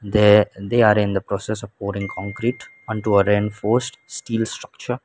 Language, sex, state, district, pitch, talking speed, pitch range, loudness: English, male, Sikkim, Gangtok, 105 Hz, 165 wpm, 100-115 Hz, -20 LUFS